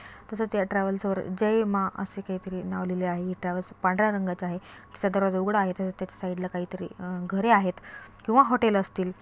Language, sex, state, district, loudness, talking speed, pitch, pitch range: Marathi, female, Maharashtra, Solapur, -27 LUFS, 195 wpm, 190 Hz, 185-205 Hz